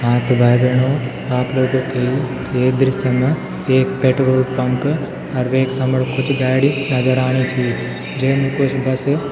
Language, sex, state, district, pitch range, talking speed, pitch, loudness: Garhwali, male, Uttarakhand, Tehri Garhwal, 125-135 Hz, 160 wpm, 130 Hz, -17 LUFS